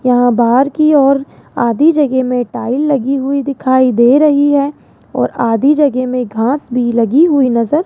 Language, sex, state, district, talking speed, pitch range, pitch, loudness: Hindi, female, Rajasthan, Jaipur, 185 wpm, 245-285 Hz, 265 Hz, -12 LUFS